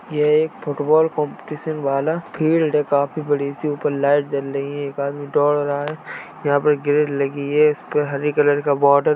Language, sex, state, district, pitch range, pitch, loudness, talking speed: Hindi, male, Uttar Pradesh, Jalaun, 140-150 Hz, 145 Hz, -20 LUFS, 210 wpm